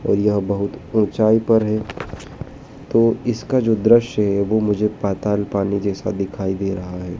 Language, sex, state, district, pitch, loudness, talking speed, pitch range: Hindi, male, Madhya Pradesh, Dhar, 105 Hz, -19 LUFS, 165 wpm, 100-110 Hz